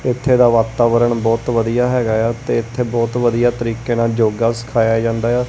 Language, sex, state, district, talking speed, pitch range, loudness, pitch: Punjabi, male, Punjab, Kapurthala, 185 wpm, 115-120 Hz, -16 LUFS, 115 Hz